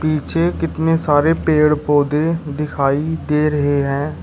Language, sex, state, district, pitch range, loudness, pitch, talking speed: Hindi, male, Uttar Pradesh, Shamli, 145-160 Hz, -17 LUFS, 150 Hz, 130 wpm